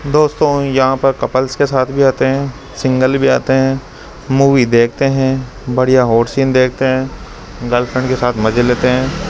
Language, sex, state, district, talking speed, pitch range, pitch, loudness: Hindi, male, Rajasthan, Jaipur, 175 wpm, 125-135 Hz, 130 Hz, -14 LUFS